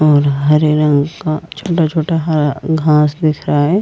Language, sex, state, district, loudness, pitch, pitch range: Hindi, female, Goa, North and South Goa, -14 LUFS, 155 Hz, 150-160 Hz